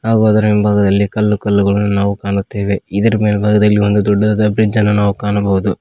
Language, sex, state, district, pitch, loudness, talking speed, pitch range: Kannada, male, Karnataka, Koppal, 105 Hz, -14 LUFS, 155 wpm, 100-105 Hz